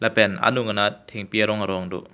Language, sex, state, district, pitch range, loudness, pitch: Karbi, male, Assam, Karbi Anglong, 95-110 Hz, -22 LUFS, 105 Hz